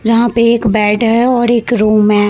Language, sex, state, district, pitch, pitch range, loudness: Hindi, female, Bihar, Vaishali, 230 Hz, 215-235 Hz, -11 LUFS